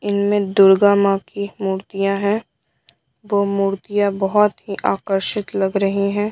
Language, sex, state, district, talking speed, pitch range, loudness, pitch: Hindi, female, Bihar, Patna, 125 wpm, 195-205 Hz, -18 LUFS, 200 Hz